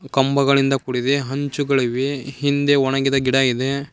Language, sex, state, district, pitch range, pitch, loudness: Kannada, male, Karnataka, Koppal, 135-140 Hz, 135 Hz, -19 LUFS